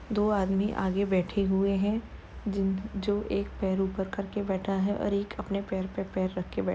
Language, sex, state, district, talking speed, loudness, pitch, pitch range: Hindi, female, Uttar Pradesh, Jalaun, 215 wpm, -30 LUFS, 195 Hz, 190-205 Hz